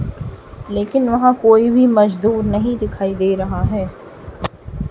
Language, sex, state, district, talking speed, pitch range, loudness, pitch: Hindi, female, Chhattisgarh, Raipur, 120 wpm, 205-240 Hz, -16 LUFS, 220 Hz